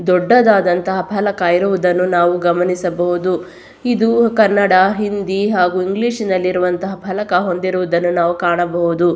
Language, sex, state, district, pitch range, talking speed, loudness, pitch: Kannada, female, Karnataka, Belgaum, 175-200 Hz, 100 wpm, -15 LUFS, 185 Hz